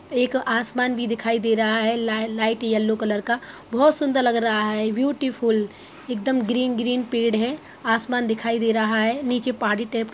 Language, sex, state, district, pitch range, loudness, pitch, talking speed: Hindi, female, Bihar, Muzaffarpur, 225-250 Hz, -22 LUFS, 230 Hz, 190 wpm